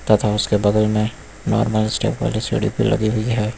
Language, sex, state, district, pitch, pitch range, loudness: Hindi, male, Uttar Pradesh, Lucknow, 110 Hz, 105-110 Hz, -19 LUFS